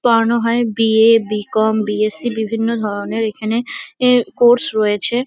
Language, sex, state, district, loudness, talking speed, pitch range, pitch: Bengali, female, West Bengal, North 24 Parganas, -16 LUFS, 195 wpm, 215-235 Hz, 225 Hz